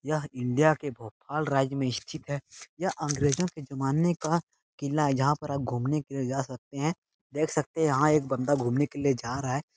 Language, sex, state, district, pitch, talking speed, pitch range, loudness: Hindi, male, Bihar, Jahanabad, 145 Hz, 220 wpm, 135-155 Hz, -29 LUFS